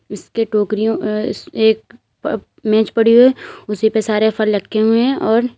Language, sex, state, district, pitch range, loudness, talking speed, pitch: Hindi, female, Uttar Pradesh, Lalitpur, 215-225 Hz, -16 LUFS, 205 wpm, 220 Hz